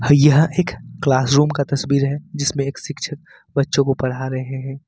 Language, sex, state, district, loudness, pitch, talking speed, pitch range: Hindi, male, Jharkhand, Ranchi, -19 LUFS, 140 Hz, 185 wpm, 135-145 Hz